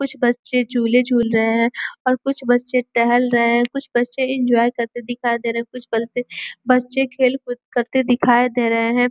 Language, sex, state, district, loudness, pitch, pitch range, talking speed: Hindi, female, Uttar Pradesh, Gorakhpur, -19 LUFS, 245 Hz, 235-255 Hz, 190 wpm